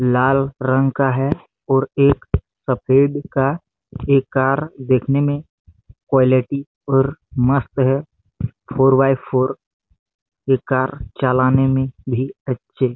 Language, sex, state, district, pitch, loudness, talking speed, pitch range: Hindi, male, Chhattisgarh, Bastar, 135 Hz, -18 LUFS, 115 wpm, 130-140 Hz